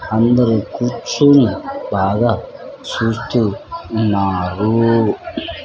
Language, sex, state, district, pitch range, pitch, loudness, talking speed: Telugu, male, Andhra Pradesh, Sri Satya Sai, 105-120 Hz, 115 Hz, -16 LUFS, 55 wpm